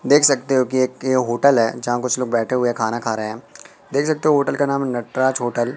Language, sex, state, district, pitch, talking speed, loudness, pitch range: Hindi, male, Madhya Pradesh, Katni, 125 Hz, 270 wpm, -19 LUFS, 120-140 Hz